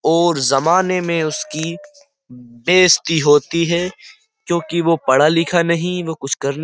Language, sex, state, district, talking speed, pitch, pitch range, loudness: Hindi, male, Uttar Pradesh, Jyotiba Phule Nagar, 145 wpm, 170 Hz, 155-180 Hz, -16 LUFS